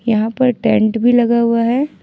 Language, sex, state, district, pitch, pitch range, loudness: Hindi, female, Jharkhand, Ranchi, 235 Hz, 225-245 Hz, -14 LUFS